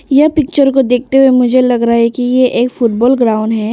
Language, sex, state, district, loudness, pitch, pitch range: Hindi, female, Arunachal Pradesh, Longding, -11 LUFS, 250 Hz, 235-270 Hz